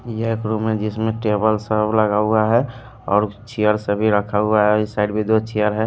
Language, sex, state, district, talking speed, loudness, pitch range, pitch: Hindi, male, Maharashtra, Gondia, 225 wpm, -19 LUFS, 105-110 Hz, 110 Hz